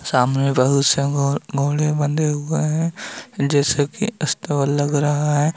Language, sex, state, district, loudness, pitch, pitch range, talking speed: Hindi, male, Uttar Pradesh, Jalaun, -19 LUFS, 145 Hz, 140-150 Hz, 140 wpm